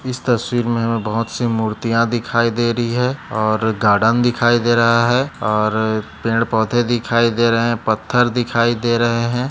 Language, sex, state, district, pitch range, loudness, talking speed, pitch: Hindi, male, Maharashtra, Nagpur, 110-120 Hz, -17 LUFS, 175 wpm, 115 Hz